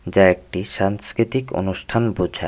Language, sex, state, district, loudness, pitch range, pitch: Bengali, male, Tripura, West Tripura, -20 LUFS, 90-115 Hz, 95 Hz